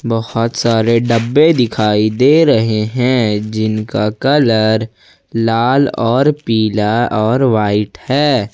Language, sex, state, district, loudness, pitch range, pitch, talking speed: Hindi, male, Jharkhand, Ranchi, -13 LUFS, 110-130 Hz, 115 Hz, 105 wpm